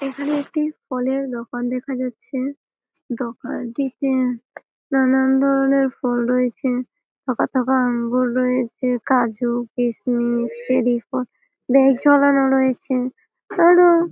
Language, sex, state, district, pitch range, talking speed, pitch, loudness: Bengali, female, West Bengal, Malda, 245-275 Hz, 95 wpm, 255 Hz, -20 LUFS